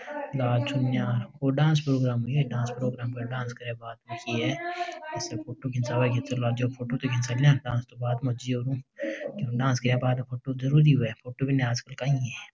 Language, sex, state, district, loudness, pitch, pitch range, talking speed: Marwari, male, Rajasthan, Nagaur, -28 LUFS, 125 Hz, 120-135 Hz, 155 wpm